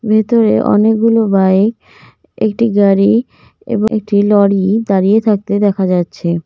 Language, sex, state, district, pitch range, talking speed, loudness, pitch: Bengali, female, West Bengal, Cooch Behar, 195-220 Hz, 110 wpm, -12 LUFS, 210 Hz